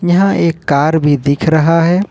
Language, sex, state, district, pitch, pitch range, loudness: Hindi, male, Jharkhand, Ranchi, 165 Hz, 150-175 Hz, -12 LUFS